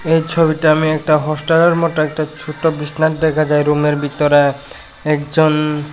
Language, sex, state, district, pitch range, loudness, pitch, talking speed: Bengali, male, Tripura, West Tripura, 150-160 Hz, -15 LUFS, 155 Hz, 140 wpm